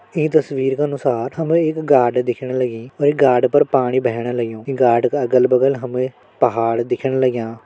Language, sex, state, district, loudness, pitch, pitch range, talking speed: Hindi, male, Uttarakhand, Tehri Garhwal, -17 LUFS, 130 Hz, 120-140 Hz, 180 wpm